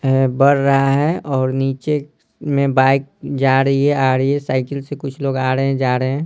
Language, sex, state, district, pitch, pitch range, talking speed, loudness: Hindi, male, Bihar, Patna, 135 Hz, 130-140 Hz, 230 wpm, -17 LUFS